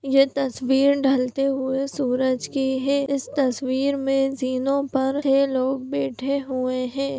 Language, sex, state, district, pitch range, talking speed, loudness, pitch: Hindi, female, Bihar, Gopalganj, 260-275 Hz, 125 wpm, -22 LUFS, 270 Hz